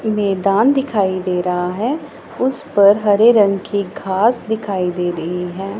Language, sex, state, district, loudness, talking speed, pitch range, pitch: Hindi, female, Punjab, Pathankot, -17 LUFS, 155 wpm, 185-225 Hz, 200 Hz